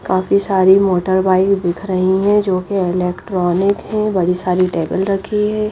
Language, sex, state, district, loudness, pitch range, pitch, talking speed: Hindi, female, Bihar, Kaimur, -16 LUFS, 185-200 Hz, 190 Hz, 170 wpm